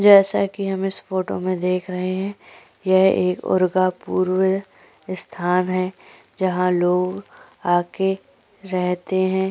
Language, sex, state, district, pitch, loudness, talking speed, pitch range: Hindi, female, Chhattisgarh, Korba, 185 Hz, -21 LUFS, 125 wpm, 180-190 Hz